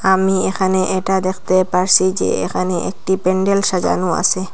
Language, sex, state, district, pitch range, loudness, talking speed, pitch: Bengali, female, Assam, Hailakandi, 185-190 Hz, -16 LUFS, 145 wpm, 185 Hz